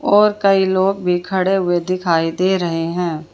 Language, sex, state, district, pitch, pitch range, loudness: Hindi, female, Haryana, Jhajjar, 185 Hz, 170-190 Hz, -17 LUFS